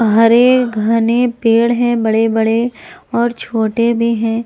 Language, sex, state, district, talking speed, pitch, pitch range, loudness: Hindi, female, Jharkhand, Ranchi, 135 wpm, 230 Hz, 225-240 Hz, -14 LUFS